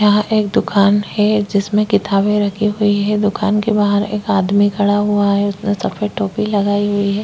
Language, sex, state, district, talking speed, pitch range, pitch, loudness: Hindi, female, Chhattisgarh, Korba, 190 wpm, 200-210 Hz, 205 Hz, -16 LUFS